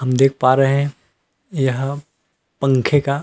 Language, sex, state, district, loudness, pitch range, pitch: Hindi, male, Chhattisgarh, Rajnandgaon, -18 LUFS, 130-145 Hz, 135 Hz